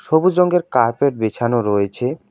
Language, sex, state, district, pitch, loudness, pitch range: Bengali, male, West Bengal, Alipurduar, 125 Hz, -17 LUFS, 110-160 Hz